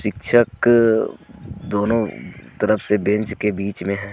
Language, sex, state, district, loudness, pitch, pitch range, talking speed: Hindi, male, Jharkhand, Garhwa, -19 LUFS, 105 Hz, 100-110 Hz, 130 wpm